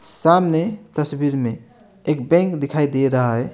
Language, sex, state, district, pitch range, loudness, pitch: Hindi, male, West Bengal, Alipurduar, 135-175 Hz, -19 LUFS, 150 Hz